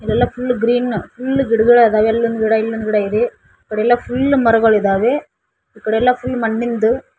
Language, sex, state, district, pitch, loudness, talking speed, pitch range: Kannada, female, Karnataka, Koppal, 230 Hz, -16 LUFS, 150 wpm, 220-245 Hz